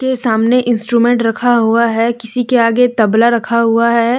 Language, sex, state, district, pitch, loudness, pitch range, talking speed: Hindi, female, Jharkhand, Deoghar, 235 Hz, -12 LUFS, 230-245 Hz, 185 wpm